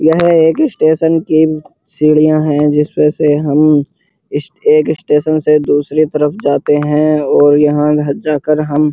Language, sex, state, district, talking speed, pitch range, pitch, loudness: Hindi, male, Uttar Pradesh, Muzaffarnagar, 150 wpm, 150-155 Hz, 150 Hz, -12 LUFS